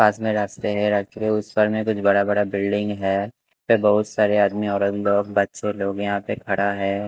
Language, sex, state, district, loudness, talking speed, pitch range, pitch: Hindi, male, Chhattisgarh, Raipur, -21 LUFS, 205 wpm, 100-105 Hz, 105 Hz